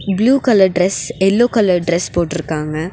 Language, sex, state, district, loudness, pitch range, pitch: Tamil, female, Tamil Nadu, Nilgiris, -15 LUFS, 170-200 Hz, 180 Hz